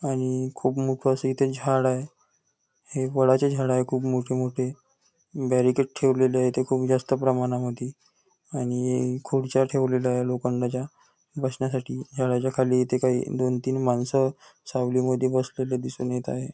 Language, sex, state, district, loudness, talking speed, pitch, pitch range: Marathi, male, Maharashtra, Nagpur, -25 LUFS, 140 wpm, 130 Hz, 125-130 Hz